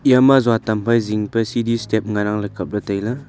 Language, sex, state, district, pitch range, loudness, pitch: Wancho, male, Arunachal Pradesh, Longding, 105-115 Hz, -18 LUFS, 110 Hz